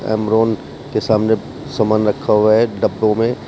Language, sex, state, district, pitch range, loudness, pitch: Hindi, male, Uttar Pradesh, Shamli, 110-115 Hz, -16 LUFS, 110 Hz